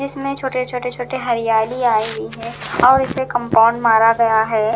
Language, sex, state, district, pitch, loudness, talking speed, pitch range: Hindi, male, Punjab, Fazilka, 235 Hz, -17 LUFS, 175 wpm, 225-255 Hz